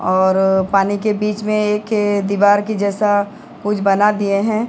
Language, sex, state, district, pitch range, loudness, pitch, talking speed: Hindi, female, Odisha, Sambalpur, 200-210 Hz, -16 LUFS, 205 Hz, 165 wpm